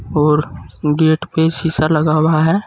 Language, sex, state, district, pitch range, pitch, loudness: Hindi, male, Uttar Pradesh, Saharanpur, 150-160 Hz, 155 Hz, -15 LUFS